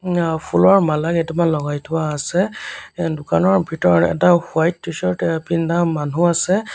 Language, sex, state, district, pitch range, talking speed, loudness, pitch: Assamese, male, Assam, Sonitpur, 155-175 Hz, 150 wpm, -18 LUFS, 165 Hz